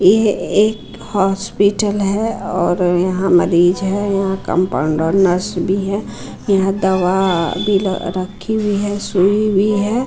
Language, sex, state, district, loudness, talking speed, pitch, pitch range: Hindi, female, Bihar, Muzaffarpur, -16 LUFS, 130 wpm, 195 Hz, 185-205 Hz